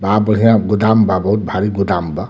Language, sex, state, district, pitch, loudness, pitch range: Bhojpuri, male, Bihar, Muzaffarpur, 105 Hz, -14 LUFS, 100-105 Hz